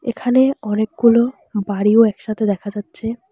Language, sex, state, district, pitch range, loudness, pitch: Bengali, female, West Bengal, Alipurduar, 205-235 Hz, -17 LUFS, 220 Hz